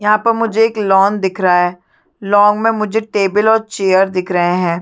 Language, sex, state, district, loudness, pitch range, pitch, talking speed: Hindi, female, Chhattisgarh, Sarguja, -14 LUFS, 185-220 Hz, 205 Hz, 210 wpm